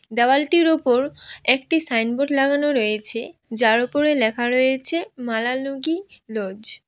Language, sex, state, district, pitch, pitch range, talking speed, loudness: Bengali, female, West Bengal, Alipurduar, 255 Hz, 230-290 Hz, 115 wpm, -20 LUFS